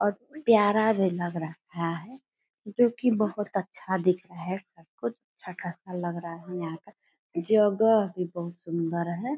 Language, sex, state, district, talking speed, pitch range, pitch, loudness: Hindi, female, Bihar, Purnia, 160 wpm, 170-215 Hz, 190 Hz, -28 LUFS